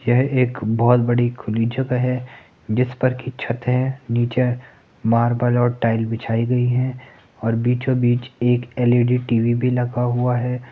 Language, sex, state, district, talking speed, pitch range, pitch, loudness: Hindi, male, Uttar Pradesh, Muzaffarnagar, 155 wpm, 120-125 Hz, 120 Hz, -20 LUFS